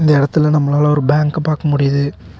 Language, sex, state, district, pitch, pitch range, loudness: Tamil, male, Tamil Nadu, Nilgiris, 150 Hz, 140-150 Hz, -15 LUFS